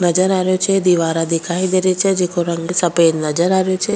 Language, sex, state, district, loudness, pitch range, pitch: Rajasthani, female, Rajasthan, Churu, -16 LUFS, 170-185 Hz, 180 Hz